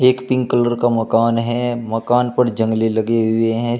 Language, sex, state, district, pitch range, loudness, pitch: Hindi, male, Uttar Pradesh, Shamli, 115-120 Hz, -17 LUFS, 115 Hz